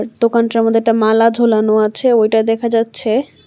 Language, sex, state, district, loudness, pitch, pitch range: Bengali, female, Tripura, West Tripura, -14 LUFS, 225 Hz, 220-230 Hz